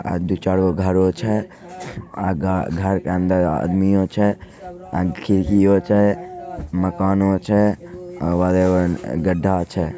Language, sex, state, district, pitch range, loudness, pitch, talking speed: Maithili, male, Bihar, Begusarai, 90-105 Hz, -19 LUFS, 95 Hz, 140 wpm